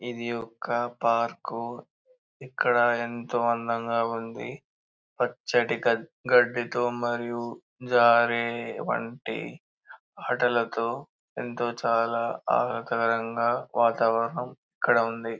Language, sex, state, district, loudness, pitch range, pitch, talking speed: Telugu, male, Telangana, Karimnagar, -26 LUFS, 115-120 Hz, 120 Hz, 80 wpm